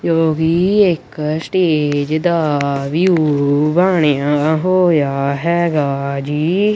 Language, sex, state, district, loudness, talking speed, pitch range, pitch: Punjabi, male, Punjab, Kapurthala, -15 LUFS, 90 wpm, 145-175 Hz, 155 Hz